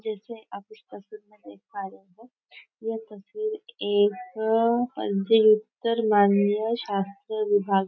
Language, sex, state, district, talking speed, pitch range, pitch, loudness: Hindi, female, Maharashtra, Nagpur, 120 wpm, 200-230 Hz, 215 Hz, -25 LUFS